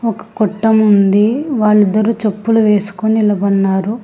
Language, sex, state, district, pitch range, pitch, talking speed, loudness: Telugu, female, Telangana, Hyderabad, 205-220 Hz, 215 Hz, 90 wpm, -13 LUFS